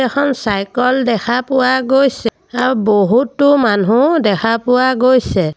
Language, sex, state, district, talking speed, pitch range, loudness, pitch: Assamese, female, Assam, Sonitpur, 120 wpm, 225-260 Hz, -14 LUFS, 250 Hz